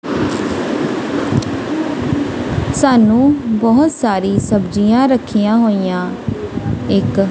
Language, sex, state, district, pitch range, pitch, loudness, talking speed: Punjabi, female, Punjab, Kapurthala, 210-295 Hz, 230 Hz, -15 LUFS, 55 wpm